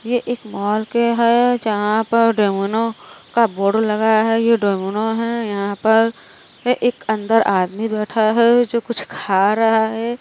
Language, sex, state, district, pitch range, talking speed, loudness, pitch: Hindi, female, Uttar Pradesh, Varanasi, 210-235 Hz, 160 wpm, -17 LUFS, 225 Hz